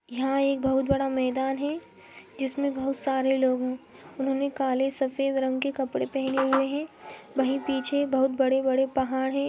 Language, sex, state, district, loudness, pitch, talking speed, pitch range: Hindi, female, Chhattisgarh, Rajnandgaon, -27 LUFS, 270 Hz, 160 wpm, 265-275 Hz